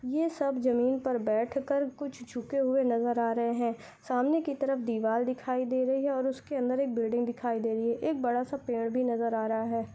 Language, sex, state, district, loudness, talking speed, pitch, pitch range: Hindi, female, Uttar Pradesh, Budaun, -30 LUFS, 230 wpm, 250 Hz, 235-270 Hz